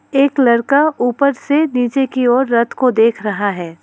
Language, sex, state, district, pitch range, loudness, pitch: Hindi, female, West Bengal, Alipurduar, 235-275 Hz, -15 LUFS, 250 Hz